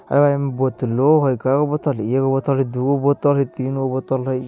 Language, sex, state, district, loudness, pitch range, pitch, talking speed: Bajjika, male, Bihar, Vaishali, -19 LUFS, 130-140 Hz, 135 Hz, 215 wpm